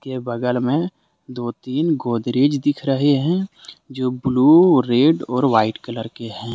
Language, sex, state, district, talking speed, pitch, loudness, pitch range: Hindi, male, Jharkhand, Deoghar, 155 wpm, 130 Hz, -18 LUFS, 120-145 Hz